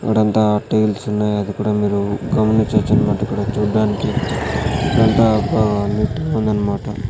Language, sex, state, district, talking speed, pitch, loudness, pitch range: Telugu, male, Andhra Pradesh, Sri Satya Sai, 135 wpm, 105 Hz, -17 LUFS, 105-110 Hz